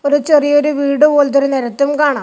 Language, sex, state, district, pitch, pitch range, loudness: Malayalam, male, Kerala, Kasaragod, 285 Hz, 280-295 Hz, -13 LUFS